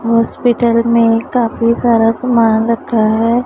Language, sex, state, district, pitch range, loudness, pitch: Hindi, female, Punjab, Pathankot, 225-235 Hz, -13 LUFS, 230 Hz